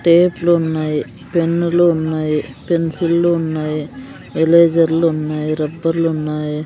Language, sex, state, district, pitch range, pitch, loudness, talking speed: Telugu, female, Andhra Pradesh, Sri Satya Sai, 155-170 Hz, 160 Hz, -16 LUFS, 90 wpm